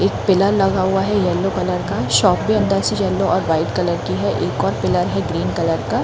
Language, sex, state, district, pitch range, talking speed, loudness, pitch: Hindi, female, Chhattisgarh, Bilaspur, 180-195 Hz, 250 wpm, -18 LUFS, 190 Hz